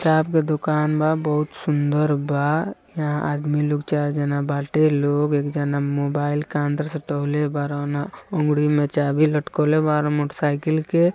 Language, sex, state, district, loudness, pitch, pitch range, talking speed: Bhojpuri, male, Bihar, East Champaran, -22 LUFS, 150 Hz, 145-155 Hz, 160 wpm